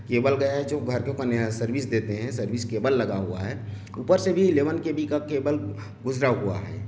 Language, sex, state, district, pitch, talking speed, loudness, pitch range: Hindi, male, Chhattisgarh, Bilaspur, 125 Hz, 220 wpm, -26 LUFS, 105-140 Hz